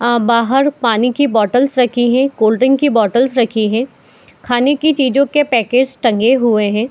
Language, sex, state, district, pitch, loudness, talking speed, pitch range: Hindi, female, Jharkhand, Jamtara, 245 Hz, -13 LUFS, 175 wpm, 230-270 Hz